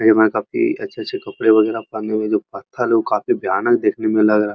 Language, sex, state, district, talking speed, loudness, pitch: Hindi, male, Uttar Pradesh, Muzaffarnagar, 275 wpm, -18 LUFS, 110 Hz